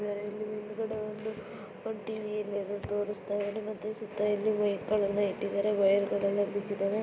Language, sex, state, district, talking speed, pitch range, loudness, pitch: Kannada, male, Karnataka, Chamarajanagar, 135 wpm, 205-215 Hz, -32 LUFS, 210 Hz